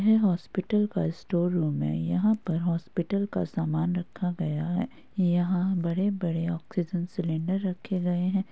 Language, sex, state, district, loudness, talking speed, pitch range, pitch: Hindi, female, Uttar Pradesh, Jyotiba Phule Nagar, -28 LUFS, 150 wpm, 170-195 Hz, 180 Hz